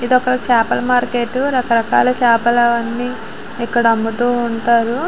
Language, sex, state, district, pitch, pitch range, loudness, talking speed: Telugu, female, Andhra Pradesh, Visakhapatnam, 240 Hz, 235-250 Hz, -15 LUFS, 120 wpm